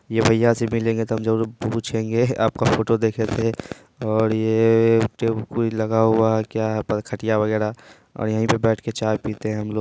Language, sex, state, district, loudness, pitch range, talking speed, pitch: Hindi, male, Bihar, Purnia, -21 LUFS, 110-115 Hz, 210 wpm, 110 Hz